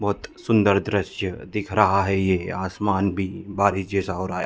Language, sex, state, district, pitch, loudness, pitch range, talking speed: Hindi, male, Chhattisgarh, Bilaspur, 100 Hz, -23 LUFS, 95-100 Hz, 200 wpm